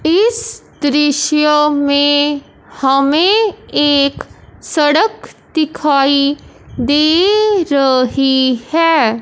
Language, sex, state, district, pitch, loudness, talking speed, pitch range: Hindi, male, Punjab, Fazilka, 290 Hz, -13 LUFS, 65 wpm, 280-325 Hz